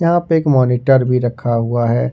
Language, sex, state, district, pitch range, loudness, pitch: Hindi, male, Jharkhand, Ranchi, 120-145 Hz, -15 LUFS, 125 Hz